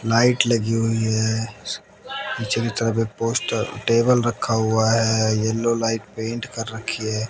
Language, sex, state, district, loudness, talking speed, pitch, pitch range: Hindi, male, Haryana, Jhajjar, -21 LUFS, 155 wpm, 115 Hz, 110-115 Hz